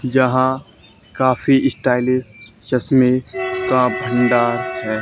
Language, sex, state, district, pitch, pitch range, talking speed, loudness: Hindi, male, Haryana, Charkhi Dadri, 125 Hz, 110-130 Hz, 85 wpm, -17 LUFS